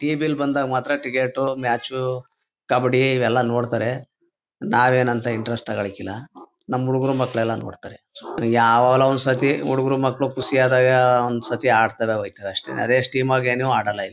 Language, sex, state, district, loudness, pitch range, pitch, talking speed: Kannada, male, Karnataka, Mysore, -20 LUFS, 120-130 Hz, 125 Hz, 150 wpm